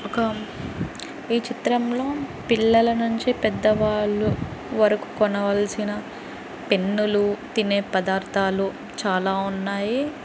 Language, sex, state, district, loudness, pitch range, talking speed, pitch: Telugu, female, Andhra Pradesh, Guntur, -23 LUFS, 200-230 Hz, 75 wpm, 215 Hz